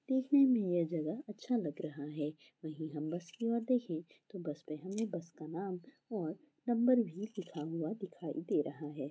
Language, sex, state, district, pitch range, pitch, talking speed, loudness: Hindi, female, Bihar, Kishanganj, 155-230 Hz, 175 Hz, 195 wpm, -37 LUFS